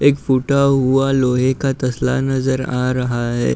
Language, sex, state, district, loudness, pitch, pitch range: Hindi, male, Uttar Pradesh, Budaun, -17 LUFS, 130 Hz, 125-135 Hz